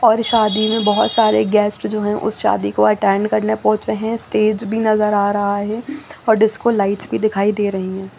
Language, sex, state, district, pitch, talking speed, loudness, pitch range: Hindi, female, Chandigarh, Chandigarh, 210 Hz, 210 wpm, -17 LUFS, 200-220 Hz